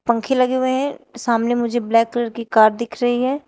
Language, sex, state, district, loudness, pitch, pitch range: Hindi, female, Uttar Pradesh, Shamli, -19 LUFS, 240 Hz, 230-255 Hz